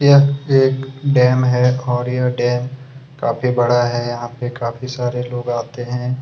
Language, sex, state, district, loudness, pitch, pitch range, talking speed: Hindi, male, Chhattisgarh, Kabirdham, -18 LUFS, 125 Hz, 120-130 Hz, 165 wpm